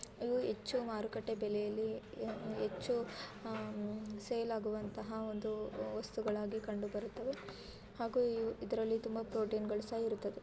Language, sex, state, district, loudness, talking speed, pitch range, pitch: Kannada, female, Karnataka, Mysore, -40 LUFS, 85 wpm, 210-230 Hz, 220 Hz